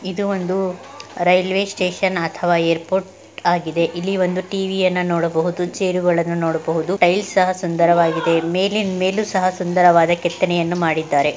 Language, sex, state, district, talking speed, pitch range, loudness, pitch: Kannada, female, Karnataka, Gulbarga, 130 wpm, 170-185 Hz, -18 LUFS, 180 Hz